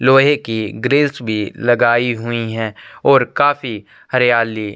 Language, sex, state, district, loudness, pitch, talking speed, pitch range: Hindi, male, Chhattisgarh, Korba, -16 LUFS, 120 Hz, 140 wpm, 110-130 Hz